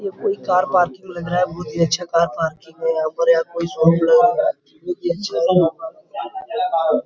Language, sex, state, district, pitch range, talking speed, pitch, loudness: Hindi, male, Bihar, Araria, 165-235 Hz, 240 wpm, 175 Hz, -19 LUFS